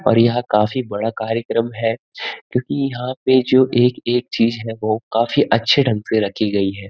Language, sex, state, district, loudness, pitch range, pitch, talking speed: Hindi, male, Uttarakhand, Uttarkashi, -18 LUFS, 110-125 Hz, 115 Hz, 180 wpm